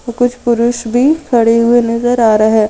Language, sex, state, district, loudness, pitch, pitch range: Hindi, female, Jharkhand, Deoghar, -12 LUFS, 235 Hz, 230-245 Hz